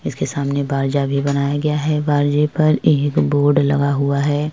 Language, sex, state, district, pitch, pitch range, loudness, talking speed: Hindi, female, Uttar Pradesh, Jyotiba Phule Nagar, 145 Hz, 140-150 Hz, -17 LUFS, 185 wpm